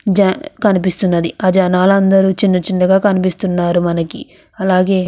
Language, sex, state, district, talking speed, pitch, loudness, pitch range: Telugu, female, Andhra Pradesh, Krishna, 120 wpm, 185 Hz, -14 LUFS, 180-195 Hz